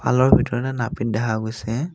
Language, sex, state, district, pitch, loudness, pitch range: Assamese, male, Assam, Kamrup Metropolitan, 120 Hz, -21 LUFS, 110-130 Hz